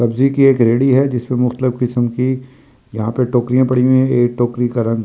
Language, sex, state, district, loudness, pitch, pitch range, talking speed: Hindi, male, Delhi, New Delhi, -15 LUFS, 125 Hz, 120-130 Hz, 155 wpm